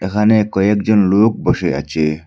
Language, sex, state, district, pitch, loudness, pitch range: Bengali, male, Assam, Hailakandi, 100 Hz, -15 LUFS, 80-105 Hz